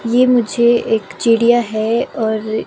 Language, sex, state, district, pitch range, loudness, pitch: Hindi, female, Himachal Pradesh, Shimla, 220-240 Hz, -15 LUFS, 230 Hz